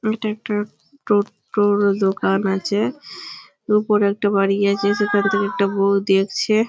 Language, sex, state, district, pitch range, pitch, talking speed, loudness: Bengali, female, West Bengal, Malda, 200-215 Hz, 205 Hz, 135 wpm, -19 LUFS